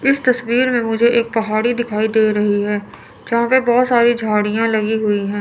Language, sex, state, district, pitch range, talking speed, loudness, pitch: Hindi, female, Chandigarh, Chandigarh, 215-240 Hz, 200 wpm, -16 LUFS, 225 Hz